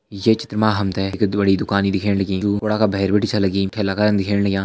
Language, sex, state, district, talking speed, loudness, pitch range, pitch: Hindi, male, Uttarakhand, Tehri Garhwal, 260 wpm, -19 LUFS, 95-105 Hz, 100 Hz